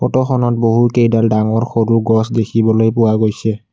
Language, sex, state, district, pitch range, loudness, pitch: Assamese, male, Assam, Kamrup Metropolitan, 110-115 Hz, -14 LUFS, 115 Hz